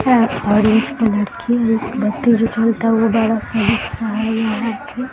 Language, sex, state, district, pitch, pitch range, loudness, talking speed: Hindi, female, Bihar, Sitamarhi, 225 Hz, 220-230 Hz, -17 LUFS, 80 wpm